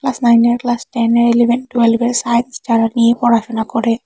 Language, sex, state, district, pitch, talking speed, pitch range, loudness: Bengali, female, Tripura, West Tripura, 235 Hz, 165 wpm, 230-240 Hz, -14 LUFS